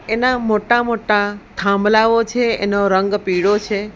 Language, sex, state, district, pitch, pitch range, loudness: Gujarati, female, Gujarat, Valsad, 210 Hz, 200-230 Hz, -16 LUFS